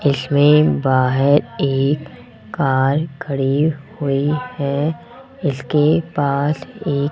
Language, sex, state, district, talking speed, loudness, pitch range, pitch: Hindi, male, Rajasthan, Jaipur, 95 wpm, -18 LUFS, 135-150 Hz, 145 Hz